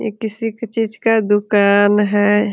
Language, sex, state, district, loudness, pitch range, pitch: Hindi, female, Bihar, Muzaffarpur, -16 LUFS, 205-225 Hz, 210 Hz